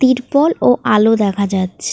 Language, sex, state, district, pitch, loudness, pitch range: Bengali, female, West Bengal, North 24 Parganas, 220 Hz, -14 LUFS, 200-260 Hz